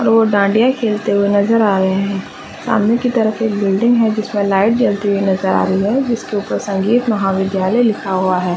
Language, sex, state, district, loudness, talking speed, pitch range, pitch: Hindi, female, Chhattisgarh, Raigarh, -15 LUFS, 210 wpm, 195-225 Hz, 205 Hz